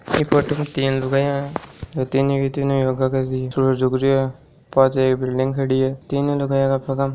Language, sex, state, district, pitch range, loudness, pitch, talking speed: Marwari, male, Rajasthan, Nagaur, 130-140 Hz, -20 LUFS, 135 Hz, 185 wpm